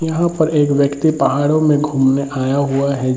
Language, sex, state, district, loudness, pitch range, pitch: Hindi, male, Bihar, Jamui, -15 LUFS, 135-155 Hz, 140 Hz